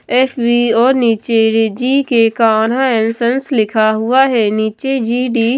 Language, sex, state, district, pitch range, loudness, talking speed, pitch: Hindi, female, Himachal Pradesh, Shimla, 225-255 Hz, -13 LUFS, 160 wpm, 235 Hz